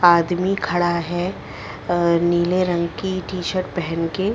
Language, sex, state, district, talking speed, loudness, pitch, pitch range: Hindi, female, Chhattisgarh, Rajnandgaon, 140 wpm, -21 LUFS, 175 Hz, 170-185 Hz